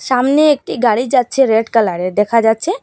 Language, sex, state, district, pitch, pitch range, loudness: Bengali, female, Assam, Hailakandi, 245 Hz, 220-270 Hz, -14 LUFS